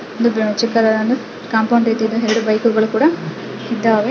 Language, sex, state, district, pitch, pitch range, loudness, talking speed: Kannada, female, Karnataka, Chamarajanagar, 225 Hz, 220-235 Hz, -16 LUFS, 145 wpm